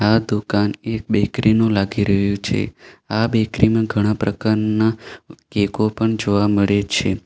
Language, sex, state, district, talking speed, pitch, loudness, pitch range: Gujarati, male, Gujarat, Valsad, 150 wpm, 105 Hz, -19 LUFS, 100-110 Hz